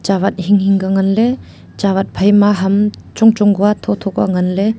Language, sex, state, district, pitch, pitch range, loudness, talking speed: Wancho, female, Arunachal Pradesh, Longding, 200 Hz, 195-205 Hz, -14 LUFS, 215 wpm